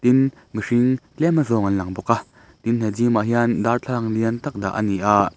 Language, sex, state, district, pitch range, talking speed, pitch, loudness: Mizo, male, Mizoram, Aizawl, 105-125 Hz, 235 wpm, 115 Hz, -21 LUFS